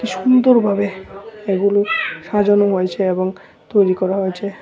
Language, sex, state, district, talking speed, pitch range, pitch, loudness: Bengali, male, Tripura, West Tripura, 105 wpm, 190-210 Hz, 200 Hz, -17 LUFS